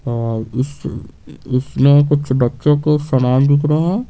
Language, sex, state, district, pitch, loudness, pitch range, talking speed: Hindi, male, Bihar, Patna, 140 Hz, -16 LUFS, 125-150 Hz, 145 wpm